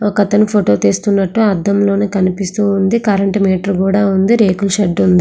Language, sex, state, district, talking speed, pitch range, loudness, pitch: Telugu, female, Andhra Pradesh, Srikakulam, 160 wpm, 190-205 Hz, -13 LUFS, 200 Hz